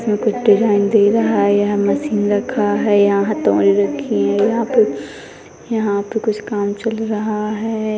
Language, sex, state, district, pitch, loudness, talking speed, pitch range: Hindi, female, Rajasthan, Nagaur, 210 Hz, -16 LUFS, 165 wpm, 205-220 Hz